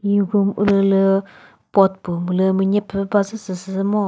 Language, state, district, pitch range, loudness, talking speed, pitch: Chakhesang, Nagaland, Dimapur, 190-200 Hz, -18 LUFS, 145 wpm, 195 Hz